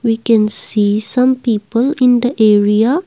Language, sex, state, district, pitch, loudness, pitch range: English, female, Assam, Kamrup Metropolitan, 230 Hz, -12 LUFS, 210-250 Hz